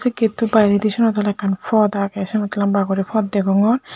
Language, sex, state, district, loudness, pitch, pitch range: Chakma, male, Tripura, Unakoti, -18 LUFS, 210 Hz, 200-220 Hz